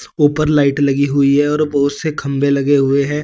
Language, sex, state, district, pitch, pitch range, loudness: Hindi, male, Uttar Pradesh, Saharanpur, 140 Hz, 140-150 Hz, -15 LUFS